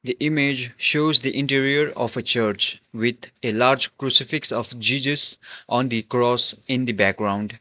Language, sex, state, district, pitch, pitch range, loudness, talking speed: English, male, Sikkim, Gangtok, 125 Hz, 115-135 Hz, -20 LUFS, 160 wpm